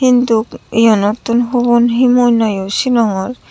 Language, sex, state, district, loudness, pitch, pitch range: Chakma, female, Tripura, Unakoti, -13 LUFS, 235 Hz, 220-245 Hz